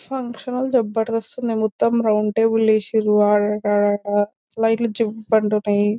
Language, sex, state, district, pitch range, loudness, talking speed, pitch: Telugu, female, Telangana, Nalgonda, 210-225 Hz, -20 LUFS, 140 wpm, 220 Hz